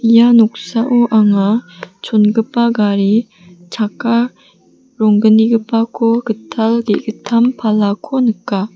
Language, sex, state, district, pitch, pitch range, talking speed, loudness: Garo, female, Meghalaya, West Garo Hills, 225 Hz, 210-235 Hz, 75 wpm, -14 LUFS